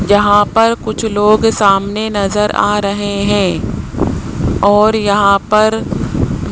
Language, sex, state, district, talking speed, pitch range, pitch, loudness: Hindi, male, Rajasthan, Jaipur, 120 wpm, 200-215 Hz, 205 Hz, -13 LUFS